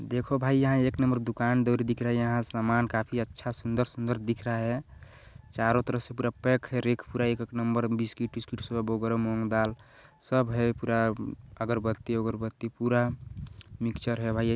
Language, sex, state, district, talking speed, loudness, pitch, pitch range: Hindi, male, Chhattisgarh, Balrampur, 195 wpm, -29 LUFS, 120 Hz, 115-120 Hz